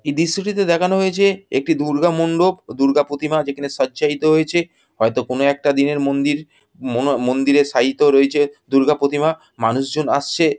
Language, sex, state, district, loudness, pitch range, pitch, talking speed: Bengali, male, West Bengal, Jhargram, -18 LUFS, 140-160 Hz, 145 Hz, 155 wpm